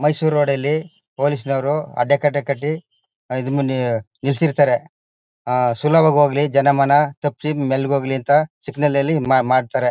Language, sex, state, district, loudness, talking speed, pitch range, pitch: Kannada, male, Karnataka, Mysore, -18 LUFS, 145 wpm, 130-150 Hz, 140 Hz